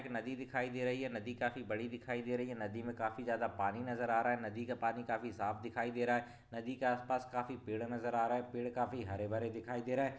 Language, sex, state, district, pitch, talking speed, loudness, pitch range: Hindi, male, Maharashtra, Nagpur, 120 Hz, 285 wpm, -39 LUFS, 115-125 Hz